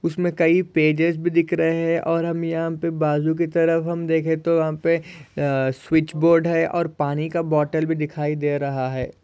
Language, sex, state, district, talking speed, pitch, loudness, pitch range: Hindi, male, Maharashtra, Solapur, 210 wpm, 165 Hz, -21 LUFS, 155-165 Hz